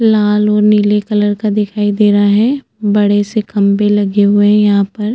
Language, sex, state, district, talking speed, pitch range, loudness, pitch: Hindi, female, Chhattisgarh, Bastar, 210 wpm, 205-210 Hz, -12 LUFS, 210 Hz